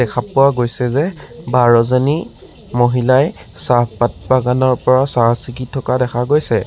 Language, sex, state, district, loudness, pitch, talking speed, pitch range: Assamese, male, Assam, Sonitpur, -15 LUFS, 125 Hz, 125 wpm, 120-135 Hz